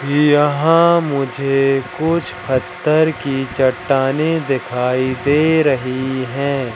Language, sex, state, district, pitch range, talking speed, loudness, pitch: Hindi, male, Madhya Pradesh, Katni, 130-160 Hz, 90 wpm, -16 LUFS, 140 Hz